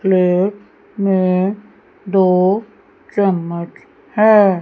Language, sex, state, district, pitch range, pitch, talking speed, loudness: Hindi, female, Chandigarh, Chandigarh, 185-205 Hz, 190 Hz, 65 wpm, -16 LUFS